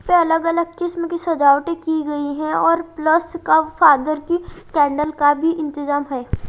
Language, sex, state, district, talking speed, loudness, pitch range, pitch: Hindi, female, Haryana, Jhajjar, 155 wpm, -18 LUFS, 295-335 Hz, 315 Hz